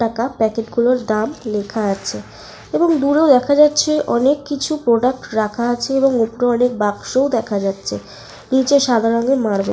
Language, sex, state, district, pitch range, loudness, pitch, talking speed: Bengali, female, Jharkhand, Sahebganj, 225-275 Hz, -17 LUFS, 240 Hz, 160 wpm